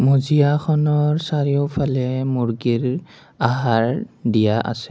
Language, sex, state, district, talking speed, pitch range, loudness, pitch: Assamese, male, Assam, Kamrup Metropolitan, 75 wpm, 120-150 Hz, -19 LUFS, 130 Hz